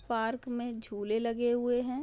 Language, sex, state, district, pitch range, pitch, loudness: Hindi, female, Andhra Pradesh, Visakhapatnam, 225-245 Hz, 240 Hz, -32 LUFS